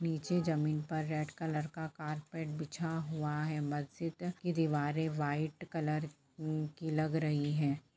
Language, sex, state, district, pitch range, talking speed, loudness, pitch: Hindi, female, Bihar, Lakhisarai, 150-160 Hz, 150 wpm, -37 LUFS, 155 Hz